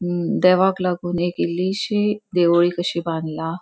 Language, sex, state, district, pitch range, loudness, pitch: Konkani, female, Goa, North and South Goa, 170-185 Hz, -20 LUFS, 175 Hz